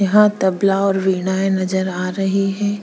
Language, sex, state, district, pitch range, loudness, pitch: Hindi, female, Chhattisgarh, Sukma, 190-195 Hz, -18 LUFS, 195 Hz